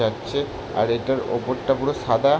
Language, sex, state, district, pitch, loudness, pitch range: Bengali, male, West Bengal, Jalpaiguri, 130 Hz, -23 LUFS, 115-140 Hz